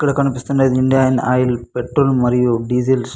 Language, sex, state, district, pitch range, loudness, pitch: Telugu, male, Andhra Pradesh, Anantapur, 125-135 Hz, -16 LUFS, 125 Hz